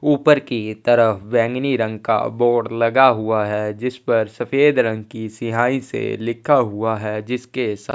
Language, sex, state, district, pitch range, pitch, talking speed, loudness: Hindi, male, Chhattisgarh, Sukma, 110-125 Hz, 115 Hz, 165 wpm, -19 LUFS